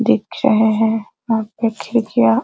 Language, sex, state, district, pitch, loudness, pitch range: Hindi, female, Bihar, Araria, 220 Hz, -17 LUFS, 215-230 Hz